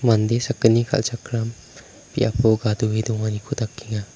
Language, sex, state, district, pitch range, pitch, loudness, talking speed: Garo, male, Meghalaya, South Garo Hills, 110-120 Hz, 115 Hz, -22 LUFS, 100 wpm